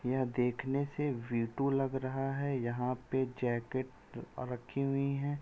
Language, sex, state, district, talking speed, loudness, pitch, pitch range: Hindi, male, Uttar Pradesh, Etah, 145 wpm, -35 LUFS, 130 Hz, 125-140 Hz